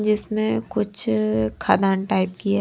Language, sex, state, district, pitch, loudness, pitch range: Hindi, female, Maharashtra, Washim, 200 Hz, -22 LUFS, 185-215 Hz